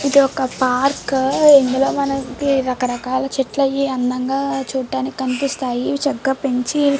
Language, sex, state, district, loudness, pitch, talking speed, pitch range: Telugu, female, Andhra Pradesh, Srikakulam, -18 LUFS, 270 Hz, 120 wpm, 255-275 Hz